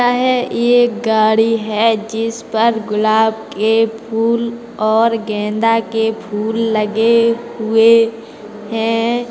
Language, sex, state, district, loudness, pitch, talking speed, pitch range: Hindi, female, Uttar Pradesh, Jalaun, -15 LUFS, 225 Hz, 105 wpm, 220-230 Hz